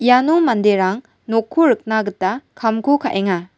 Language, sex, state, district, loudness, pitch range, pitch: Garo, female, Meghalaya, West Garo Hills, -17 LUFS, 195-250 Hz, 225 Hz